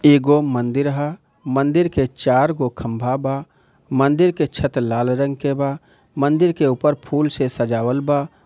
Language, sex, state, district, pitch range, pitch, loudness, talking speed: Bhojpuri, male, Bihar, Gopalganj, 130-145 Hz, 140 Hz, -19 LUFS, 155 wpm